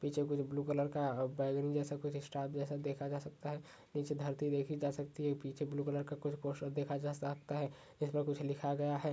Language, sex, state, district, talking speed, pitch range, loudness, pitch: Hindi, male, Maharashtra, Pune, 210 wpm, 140-145 Hz, -40 LUFS, 145 Hz